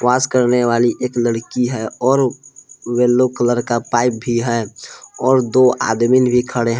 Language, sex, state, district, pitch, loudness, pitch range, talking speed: Hindi, male, Jharkhand, Palamu, 125 Hz, -16 LUFS, 120-125 Hz, 170 wpm